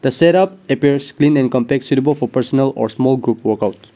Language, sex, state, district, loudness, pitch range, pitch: English, male, Nagaland, Dimapur, -16 LUFS, 125-145 Hz, 135 Hz